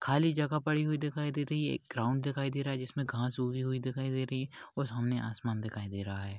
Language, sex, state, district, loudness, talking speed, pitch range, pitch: Hindi, male, Maharashtra, Pune, -34 LUFS, 265 wpm, 120-145 Hz, 130 Hz